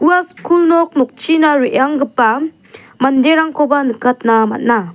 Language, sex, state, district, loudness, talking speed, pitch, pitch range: Garo, female, Meghalaya, South Garo Hills, -13 LUFS, 95 wpm, 280 Hz, 245-320 Hz